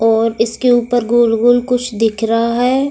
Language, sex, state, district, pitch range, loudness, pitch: Hindi, female, Goa, North and South Goa, 225-245 Hz, -14 LUFS, 235 Hz